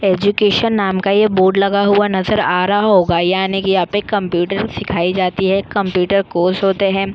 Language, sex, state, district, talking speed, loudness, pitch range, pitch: Hindi, female, Maharashtra, Chandrapur, 185 wpm, -15 LUFS, 185-205 Hz, 195 Hz